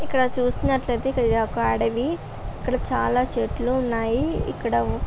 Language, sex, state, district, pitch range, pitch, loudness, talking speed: Telugu, female, Andhra Pradesh, Visakhapatnam, 225-260 Hz, 245 Hz, -24 LUFS, 120 wpm